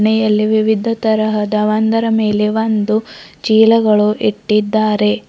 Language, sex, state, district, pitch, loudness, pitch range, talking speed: Kannada, female, Karnataka, Bidar, 215 Hz, -14 LUFS, 210-220 Hz, 90 wpm